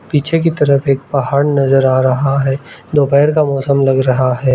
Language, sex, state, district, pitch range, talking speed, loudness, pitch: Hindi, male, Arunachal Pradesh, Lower Dibang Valley, 135-145 Hz, 200 wpm, -13 LUFS, 140 Hz